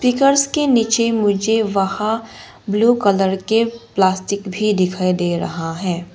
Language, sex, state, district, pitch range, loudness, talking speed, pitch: Hindi, female, Arunachal Pradesh, Longding, 190-230 Hz, -17 LUFS, 135 wpm, 205 Hz